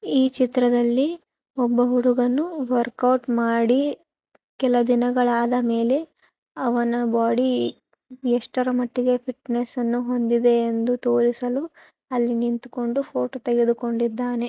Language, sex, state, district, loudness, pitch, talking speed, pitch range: Kannada, female, Karnataka, Chamarajanagar, -22 LUFS, 245 Hz, 90 wpm, 240-255 Hz